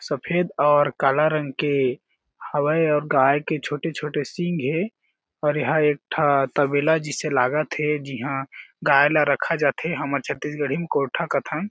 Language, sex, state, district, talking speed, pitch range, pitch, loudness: Chhattisgarhi, male, Chhattisgarh, Jashpur, 155 wpm, 140-155 Hz, 150 Hz, -22 LUFS